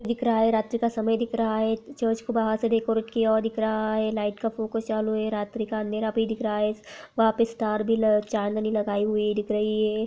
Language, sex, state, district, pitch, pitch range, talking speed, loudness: Hindi, female, Uttar Pradesh, Jyotiba Phule Nagar, 220 Hz, 215-225 Hz, 245 wpm, -26 LUFS